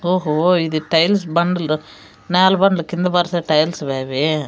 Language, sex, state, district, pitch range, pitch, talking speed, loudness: Telugu, female, Andhra Pradesh, Sri Satya Sai, 155-180 Hz, 170 Hz, 145 wpm, -17 LUFS